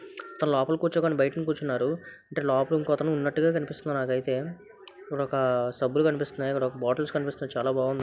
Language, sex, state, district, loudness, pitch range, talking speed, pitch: Telugu, male, Andhra Pradesh, Visakhapatnam, -27 LUFS, 130-155 Hz, 150 wpm, 145 Hz